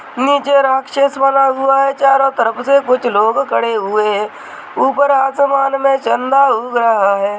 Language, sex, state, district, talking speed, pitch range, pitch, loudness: Hindi, male, Rajasthan, Nagaur, 170 wpm, 225-275 Hz, 270 Hz, -13 LUFS